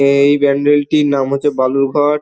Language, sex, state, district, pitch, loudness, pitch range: Bengali, male, West Bengal, Dakshin Dinajpur, 140 Hz, -13 LUFS, 140-145 Hz